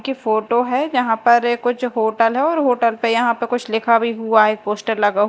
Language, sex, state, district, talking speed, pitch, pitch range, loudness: Hindi, female, Madhya Pradesh, Dhar, 240 wpm, 235 Hz, 225-245 Hz, -17 LUFS